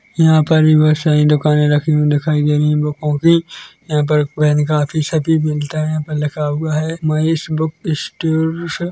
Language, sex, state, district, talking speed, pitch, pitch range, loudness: Hindi, male, Chhattisgarh, Korba, 200 wpm, 155 Hz, 150-160 Hz, -15 LUFS